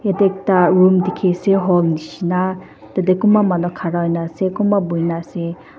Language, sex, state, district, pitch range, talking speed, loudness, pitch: Nagamese, female, Nagaland, Dimapur, 170-190 Hz, 165 wpm, -17 LUFS, 185 Hz